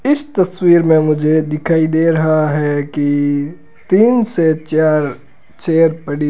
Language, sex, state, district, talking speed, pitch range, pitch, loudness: Hindi, male, Rajasthan, Bikaner, 145 wpm, 150-170 Hz, 160 Hz, -14 LUFS